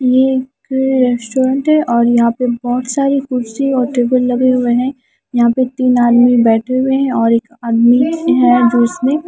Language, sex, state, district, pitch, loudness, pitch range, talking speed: Hindi, female, Himachal Pradesh, Shimla, 250 Hz, -13 LUFS, 240-265 Hz, 175 wpm